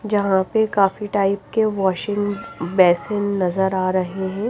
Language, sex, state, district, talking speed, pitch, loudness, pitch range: Hindi, female, Himachal Pradesh, Shimla, 145 wpm, 195 Hz, -20 LUFS, 190-205 Hz